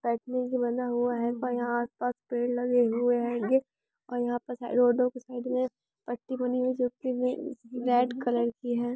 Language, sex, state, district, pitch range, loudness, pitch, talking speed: Hindi, female, Andhra Pradesh, Chittoor, 240-250 Hz, -29 LUFS, 245 Hz, 160 wpm